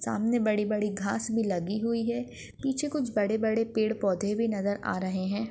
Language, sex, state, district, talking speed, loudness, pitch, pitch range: Hindi, female, Maharashtra, Aurangabad, 195 wpm, -29 LUFS, 215 Hz, 200-230 Hz